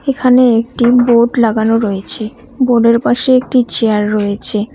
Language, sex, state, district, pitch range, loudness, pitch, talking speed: Bengali, female, West Bengal, Cooch Behar, 220-250 Hz, -12 LUFS, 235 Hz, 125 wpm